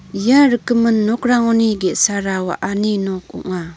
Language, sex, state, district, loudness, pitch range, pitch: Garo, female, Meghalaya, North Garo Hills, -16 LUFS, 190-230 Hz, 215 Hz